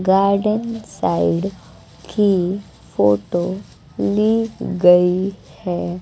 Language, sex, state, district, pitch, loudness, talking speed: Hindi, female, Bihar, West Champaran, 185 Hz, -18 LUFS, 70 wpm